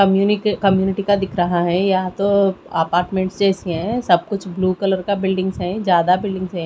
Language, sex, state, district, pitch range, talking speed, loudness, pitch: Hindi, female, Odisha, Khordha, 180-200 Hz, 190 wpm, -18 LUFS, 190 Hz